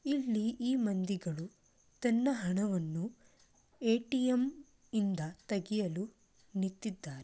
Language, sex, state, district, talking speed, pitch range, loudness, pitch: Kannada, female, Karnataka, Mysore, 75 wpm, 190-245 Hz, -35 LUFS, 215 Hz